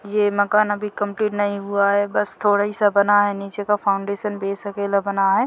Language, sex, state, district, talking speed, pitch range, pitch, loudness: Hindi, female, Chhattisgarh, Bilaspur, 220 wpm, 200-205 Hz, 205 Hz, -20 LUFS